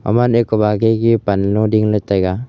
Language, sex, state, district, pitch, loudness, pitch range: Wancho, male, Arunachal Pradesh, Longding, 110 Hz, -15 LUFS, 105-115 Hz